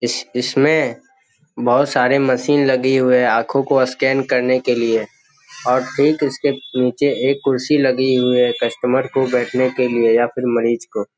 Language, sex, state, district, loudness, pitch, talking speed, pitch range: Hindi, male, Bihar, Jamui, -17 LUFS, 130 Hz, 170 wpm, 125-135 Hz